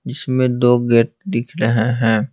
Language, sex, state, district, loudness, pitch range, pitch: Hindi, male, Bihar, Patna, -17 LUFS, 115-130 Hz, 120 Hz